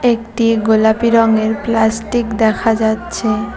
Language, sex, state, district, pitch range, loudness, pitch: Bengali, female, West Bengal, Cooch Behar, 220-230 Hz, -14 LUFS, 225 Hz